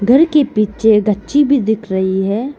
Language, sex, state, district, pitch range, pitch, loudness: Hindi, female, Arunachal Pradesh, Lower Dibang Valley, 205-280 Hz, 220 Hz, -14 LUFS